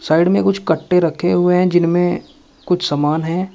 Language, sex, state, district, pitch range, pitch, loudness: Hindi, male, Uttar Pradesh, Shamli, 165-185 Hz, 175 Hz, -16 LUFS